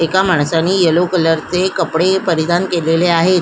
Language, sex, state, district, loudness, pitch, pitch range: Marathi, female, Maharashtra, Solapur, -14 LUFS, 175 Hz, 165-185 Hz